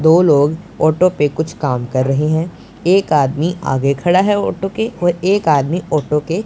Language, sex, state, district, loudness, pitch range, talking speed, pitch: Hindi, male, Punjab, Pathankot, -15 LUFS, 145-180 Hz, 195 wpm, 160 Hz